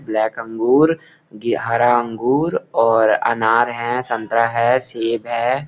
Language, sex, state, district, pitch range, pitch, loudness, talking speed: Hindi, male, Bihar, Gopalganj, 115-125 Hz, 115 Hz, -18 LUFS, 125 wpm